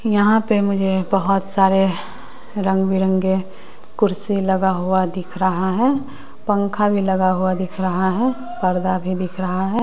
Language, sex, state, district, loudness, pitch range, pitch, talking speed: Hindi, female, Bihar, West Champaran, -19 LUFS, 185-205 Hz, 190 Hz, 155 wpm